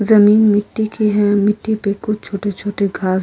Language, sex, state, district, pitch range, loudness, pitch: Hindi, female, Uttar Pradesh, Hamirpur, 200-215 Hz, -16 LUFS, 205 Hz